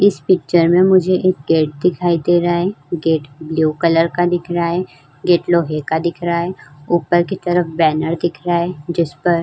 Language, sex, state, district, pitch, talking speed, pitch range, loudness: Hindi, female, Uttar Pradesh, Jyotiba Phule Nagar, 170 Hz, 210 wpm, 160-175 Hz, -16 LUFS